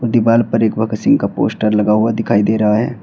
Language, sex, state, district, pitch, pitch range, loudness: Hindi, male, Uttar Pradesh, Shamli, 110 Hz, 105-115 Hz, -14 LUFS